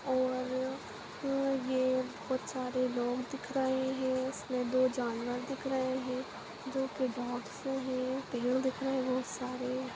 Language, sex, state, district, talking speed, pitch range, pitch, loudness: Hindi, female, Bihar, Jahanabad, 145 wpm, 255-265 Hz, 255 Hz, -35 LUFS